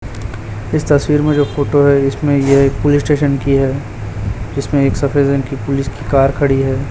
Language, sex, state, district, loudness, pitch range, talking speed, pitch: Hindi, male, Chhattisgarh, Raipur, -14 LUFS, 130-145 Hz, 200 wpm, 140 Hz